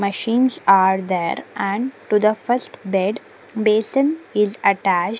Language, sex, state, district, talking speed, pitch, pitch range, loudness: English, female, Punjab, Pathankot, 125 wpm, 210 Hz, 195-235 Hz, -19 LUFS